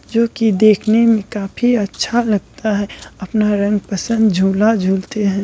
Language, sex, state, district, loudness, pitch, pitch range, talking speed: Hindi, female, Bihar, Kishanganj, -16 LUFS, 210 Hz, 200-225 Hz, 155 wpm